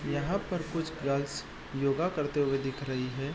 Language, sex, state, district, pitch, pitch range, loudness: Hindi, male, Bihar, East Champaran, 140 Hz, 135-160 Hz, -32 LUFS